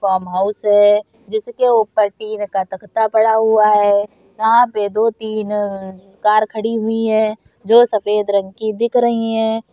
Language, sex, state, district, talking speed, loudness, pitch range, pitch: Hindi, female, Bihar, Bhagalpur, 155 wpm, -16 LUFS, 205-225 Hz, 215 Hz